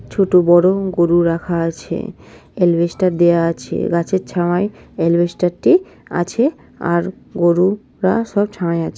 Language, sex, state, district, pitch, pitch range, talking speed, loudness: Bengali, female, West Bengal, Jhargram, 175 Hz, 170-190 Hz, 125 wpm, -17 LUFS